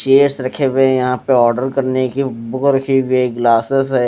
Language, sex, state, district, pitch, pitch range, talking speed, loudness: Hindi, male, Odisha, Malkangiri, 130 Hz, 125-135 Hz, 220 wpm, -15 LUFS